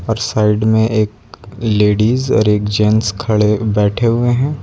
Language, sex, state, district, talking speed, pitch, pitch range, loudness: Hindi, male, Uttar Pradesh, Lucknow, 155 wpm, 110 Hz, 105-115 Hz, -14 LUFS